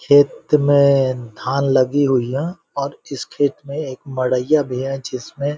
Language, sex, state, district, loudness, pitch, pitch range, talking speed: Hindi, male, Bihar, Vaishali, -18 LUFS, 140 Hz, 130-145 Hz, 150 wpm